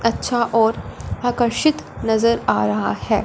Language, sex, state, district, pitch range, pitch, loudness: Hindi, male, Punjab, Fazilka, 190-240 Hz, 230 Hz, -19 LUFS